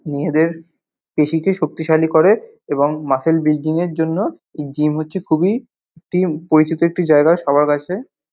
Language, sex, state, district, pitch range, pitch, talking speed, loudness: Bengali, male, West Bengal, North 24 Parganas, 150-175 Hz, 160 Hz, 115 wpm, -17 LUFS